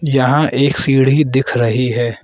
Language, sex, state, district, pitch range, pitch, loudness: Hindi, male, Arunachal Pradesh, Lower Dibang Valley, 125-140 Hz, 135 Hz, -14 LUFS